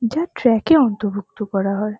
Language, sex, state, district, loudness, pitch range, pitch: Bengali, female, West Bengal, North 24 Parganas, -18 LUFS, 205-240 Hz, 210 Hz